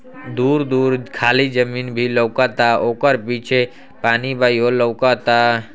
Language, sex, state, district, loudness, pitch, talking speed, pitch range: Bhojpuri, male, Uttar Pradesh, Ghazipur, -17 LUFS, 125 Hz, 115 wpm, 120-130 Hz